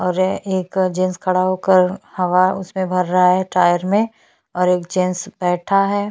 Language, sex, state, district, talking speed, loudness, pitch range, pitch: Hindi, female, Chhattisgarh, Bastar, 175 wpm, -18 LUFS, 180-190 Hz, 185 Hz